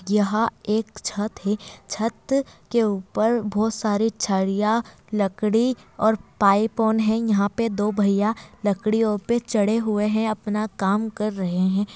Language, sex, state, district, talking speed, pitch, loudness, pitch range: Hindi, female, Bihar, Kishanganj, 140 wpm, 215 Hz, -23 LUFS, 205-220 Hz